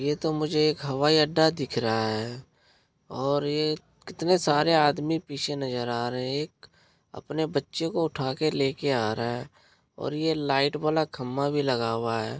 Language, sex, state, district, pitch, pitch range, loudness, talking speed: Hindi, male, Bihar, Araria, 145 Hz, 125-155 Hz, -26 LUFS, 185 wpm